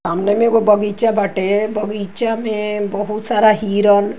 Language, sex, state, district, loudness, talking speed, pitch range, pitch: Bhojpuri, female, Uttar Pradesh, Ghazipur, -16 LUFS, 155 wpm, 205-215 Hz, 210 Hz